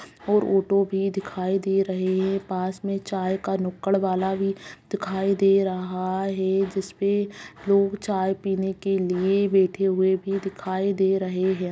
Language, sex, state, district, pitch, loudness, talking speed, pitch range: Hindi, female, Bihar, Purnia, 195 Hz, -24 LUFS, 165 wpm, 190-195 Hz